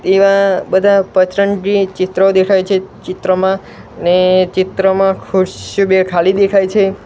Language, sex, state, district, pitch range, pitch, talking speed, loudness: Gujarati, male, Gujarat, Gandhinagar, 185-195 Hz, 190 Hz, 110 wpm, -13 LUFS